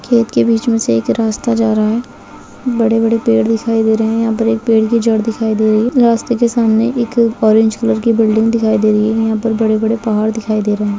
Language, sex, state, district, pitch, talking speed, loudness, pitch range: Hindi, female, Bihar, Kishanganj, 225 Hz, 285 wpm, -13 LUFS, 220-230 Hz